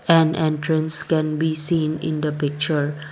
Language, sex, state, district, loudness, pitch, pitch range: English, female, Assam, Kamrup Metropolitan, -21 LUFS, 155 Hz, 150-160 Hz